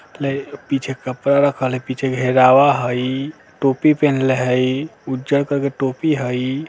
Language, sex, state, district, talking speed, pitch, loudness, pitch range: Bajjika, male, Bihar, Vaishali, 145 wpm, 135 Hz, -18 LUFS, 130-140 Hz